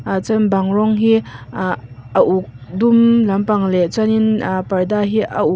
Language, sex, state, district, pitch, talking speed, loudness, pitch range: Mizo, female, Mizoram, Aizawl, 205 Hz, 195 wpm, -16 LUFS, 185-220 Hz